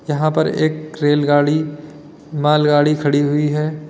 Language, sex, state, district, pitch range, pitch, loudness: Hindi, male, Uttar Pradesh, Lalitpur, 145-155 Hz, 150 Hz, -16 LUFS